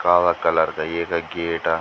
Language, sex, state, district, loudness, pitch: Garhwali, male, Uttarakhand, Tehri Garhwal, -21 LUFS, 85 Hz